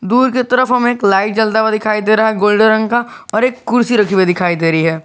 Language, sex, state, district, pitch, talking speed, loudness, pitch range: Hindi, male, Jharkhand, Garhwa, 220 Hz, 285 wpm, -13 LUFS, 200-240 Hz